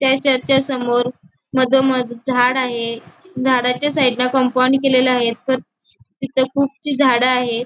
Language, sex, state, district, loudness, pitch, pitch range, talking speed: Marathi, female, Goa, North and South Goa, -17 LUFS, 255 Hz, 245-265 Hz, 125 wpm